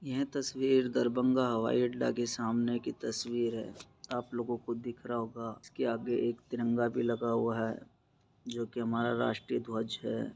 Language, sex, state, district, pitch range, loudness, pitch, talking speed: Hindi, male, Bihar, Darbhanga, 115-125 Hz, -33 LUFS, 120 Hz, 175 wpm